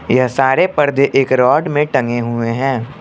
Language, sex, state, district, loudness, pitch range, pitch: Hindi, male, Arunachal Pradesh, Lower Dibang Valley, -14 LUFS, 120-140 Hz, 135 Hz